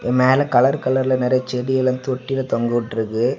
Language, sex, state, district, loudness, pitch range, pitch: Tamil, male, Tamil Nadu, Kanyakumari, -19 LUFS, 125-130 Hz, 130 Hz